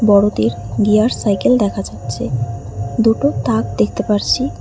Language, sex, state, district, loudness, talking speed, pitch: Bengali, female, West Bengal, Alipurduar, -16 LUFS, 115 wpm, 200 Hz